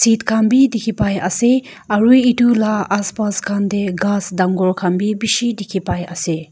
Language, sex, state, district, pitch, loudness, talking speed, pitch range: Nagamese, female, Nagaland, Kohima, 205 Hz, -16 LUFS, 175 wpm, 190-225 Hz